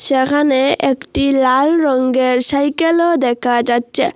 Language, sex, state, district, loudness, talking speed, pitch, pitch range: Bengali, female, Assam, Hailakandi, -14 LUFS, 100 wpm, 270 Hz, 255-290 Hz